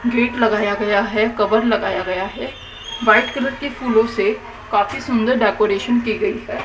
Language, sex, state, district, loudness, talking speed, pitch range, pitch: Hindi, female, Haryana, Jhajjar, -18 LUFS, 170 wpm, 205-240 Hz, 220 Hz